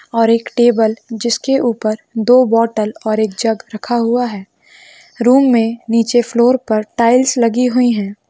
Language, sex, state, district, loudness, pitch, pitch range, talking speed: Hindi, female, Rajasthan, Churu, -14 LUFS, 230 Hz, 220-245 Hz, 160 wpm